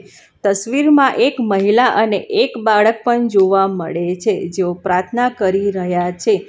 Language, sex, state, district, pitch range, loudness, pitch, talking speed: Gujarati, female, Gujarat, Valsad, 185-245 Hz, -15 LUFS, 205 Hz, 140 wpm